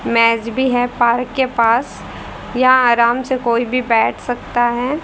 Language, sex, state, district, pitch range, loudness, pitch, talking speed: Hindi, female, Haryana, Rohtak, 235-255 Hz, -16 LUFS, 245 Hz, 165 wpm